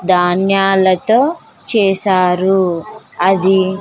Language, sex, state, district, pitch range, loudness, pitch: Telugu, female, Andhra Pradesh, Sri Satya Sai, 185-195 Hz, -13 LUFS, 190 Hz